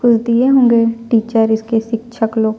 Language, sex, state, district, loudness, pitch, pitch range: Hindi, female, Chhattisgarh, Sukma, -14 LUFS, 230 Hz, 225-235 Hz